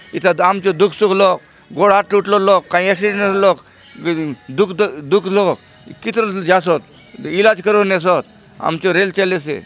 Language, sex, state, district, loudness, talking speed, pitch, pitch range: Halbi, male, Chhattisgarh, Bastar, -15 LUFS, 150 wpm, 195 Hz, 175-205 Hz